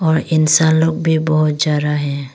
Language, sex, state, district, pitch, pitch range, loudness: Hindi, female, Arunachal Pradesh, Longding, 155 Hz, 150-160 Hz, -15 LUFS